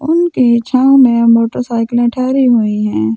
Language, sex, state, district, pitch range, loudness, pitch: Hindi, female, Delhi, New Delhi, 230-260 Hz, -11 LUFS, 240 Hz